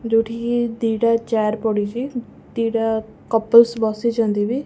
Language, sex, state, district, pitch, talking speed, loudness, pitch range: Odia, female, Odisha, Khordha, 230 Hz, 115 wpm, -19 LUFS, 220-235 Hz